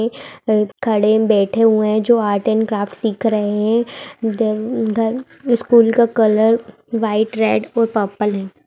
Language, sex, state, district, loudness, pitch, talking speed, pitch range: Hindi, female, Bihar, Muzaffarpur, -17 LUFS, 220 Hz, 130 wpm, 210-230 Hz